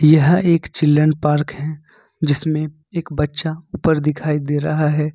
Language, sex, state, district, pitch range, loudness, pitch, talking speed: Hindi, male, Jharkhand, Ranchi, 150-160 Hz, -18 LUFS, 155 Hz, 150 wpm